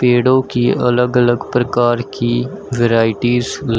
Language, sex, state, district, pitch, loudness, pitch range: Hindi, male, Uttar Pradesh, Shamli, 125 Hz, -15 LUFS, 120-125 Hz